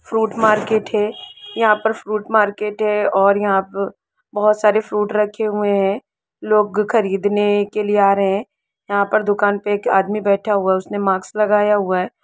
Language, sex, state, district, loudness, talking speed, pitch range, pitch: Hindi, female, Jharkhand, Jamtara, -17 LUFS, 190 wpm, 200-215 Hz, 210 Hz